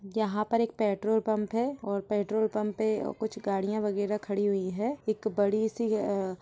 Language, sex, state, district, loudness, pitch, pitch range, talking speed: Hindi, female, Uttar Pradesh, Etah, -30 LUFS, 215 Hz, 205-220 Hz, 185 wpm